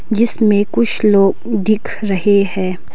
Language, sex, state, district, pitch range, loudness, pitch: Hindi, female, Arunachal Pradesh, Lower Dibang Valley, 195-220 Hz, -15 LUFS, 205 Hz